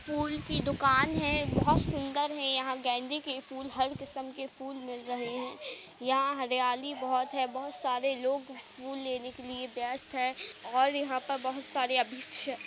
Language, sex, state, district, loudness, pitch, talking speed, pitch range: Hindi, female, Uttar Pradesh, Jalaun, -32 LUFS, 265 Hz, 175 wpm, 255-275 Hz